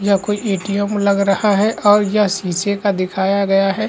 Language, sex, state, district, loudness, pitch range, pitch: Hindi, male, Chhattisgarh, Raigarh, -16 LUFS, 195-205 Hz, 200 Hz